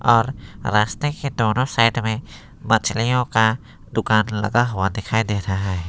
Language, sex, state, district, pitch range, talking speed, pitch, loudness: Hindi, male, West Bengal, Alipurduar, 105-120 Hz, 155 wpm, 110 Hz, -20 LUFS